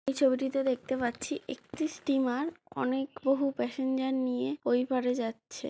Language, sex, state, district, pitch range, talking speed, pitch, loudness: Bengali, female, West Bengal, Kolkata, 250-275 Hz, 125 wpm, 265 Hz, -31 LUFS